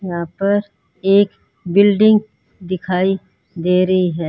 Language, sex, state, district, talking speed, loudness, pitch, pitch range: Hindi, male, Rajasthan, Bikaner, 110 wpm, -16 LUFS, 185 Hz, 180-200 Hz